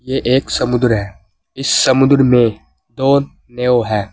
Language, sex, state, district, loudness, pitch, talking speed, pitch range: Hindi, male, Uttar Pradesh, Saharanpur, -14 LUFS, 125 Hz, 145 wpm, 110-135 Hz